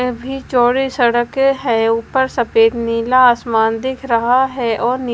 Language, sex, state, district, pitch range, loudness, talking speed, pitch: Hindi, female, Bihar, West Champaran, 230-260 Hz, -15 LUFS, 150 wpm, 240 Hz